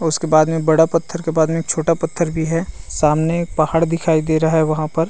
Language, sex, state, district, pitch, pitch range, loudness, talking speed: Chhattisgarhi, male, Chhattisgarh, Rajnandgaon, 160 Hz, 160-165 Hz, -17 LUFS, 260 wpm